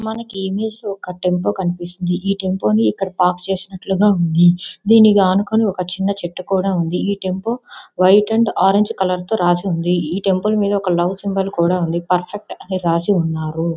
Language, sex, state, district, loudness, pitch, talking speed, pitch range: Telugu, female, Andhra Pradesh, Visakhapatnam, -17 LUFS, 190 Hz, 185 wpm, 175-200 Hz